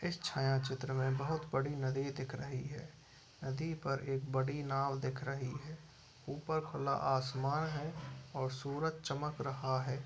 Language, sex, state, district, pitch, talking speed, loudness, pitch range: Hindi, male, Uttar Pradesh, Etah, 135 Hz, 165 wpm, -38 LUFS, 135-150 Hz